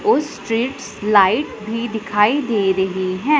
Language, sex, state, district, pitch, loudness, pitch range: Hindi, female, Punjab, Pathankot, 220 Hz, -18 LUFS, 200-250 Hz